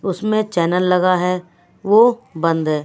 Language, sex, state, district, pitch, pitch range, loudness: Hindi, female, Bihar, West Champaran, 180 Hz, 170-205 Hz, -17 LUFS